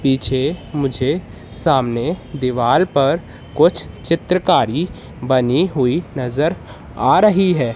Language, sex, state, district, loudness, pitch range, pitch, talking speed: Hindi, male, Madhya Pradesh, Katni, -17 LUFS, 125-165 Hz, 135 Hz, 100 wpm